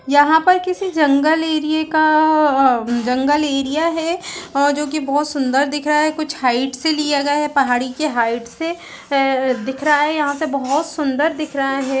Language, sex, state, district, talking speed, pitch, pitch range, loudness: Hindi, female, Chhattisgarh, Raigarh, 185 wpm, 290 Hz, 270-310 Hz, -17 LUFS